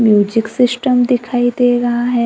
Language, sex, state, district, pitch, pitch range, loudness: Hindi, female, Maharashtra, Gondia, 245 Hz, 235-245 Hz, -14 LUFS